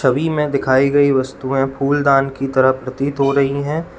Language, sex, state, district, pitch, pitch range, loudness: Hindi, male, Uttar Pradesh, Lalitpur, 135 Hz, 135-140 Hz, -16 LUFS